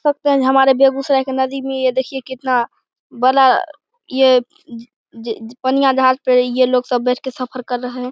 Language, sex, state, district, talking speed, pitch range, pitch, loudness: Hindi, male, Bihar, Begusarai, 160 wpm, 250-270 Hz, 260 Hz, -16 LUFS